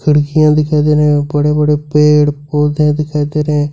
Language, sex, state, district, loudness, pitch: Hindi, male, Jharkhand, Ranchi, -12 LUFS, 150 Hz